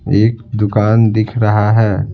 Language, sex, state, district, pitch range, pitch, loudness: Hindi, male, Bihar, Patna, 105-115 Hz, 110 Hz, -13 LUFS